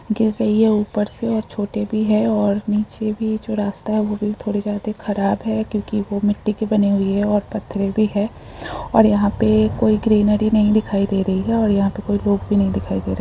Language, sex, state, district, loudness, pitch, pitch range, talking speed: Hindi, female, Jharkhand, Jamtara, -19 LUFS, 210 Hz, 200-215 Hz, 240 wpm